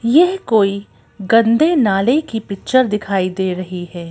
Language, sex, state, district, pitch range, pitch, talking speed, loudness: Hindi, female, Madhya Pradesh, Bhopal, 190-255 Hz, 210 Hz, 145 wpm, -16 LUFS